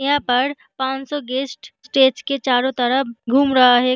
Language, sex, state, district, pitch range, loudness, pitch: Hindi, female, Uttar Pradesh, Jyotiba Phule Nagar, 250-275 Hz, -18 LUFS, 265 Hz